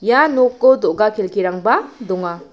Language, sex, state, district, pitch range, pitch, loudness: Garo, female, Meghalaya, South Garo Hills, 190-250 Hz, 215 Hz, -16 LUFS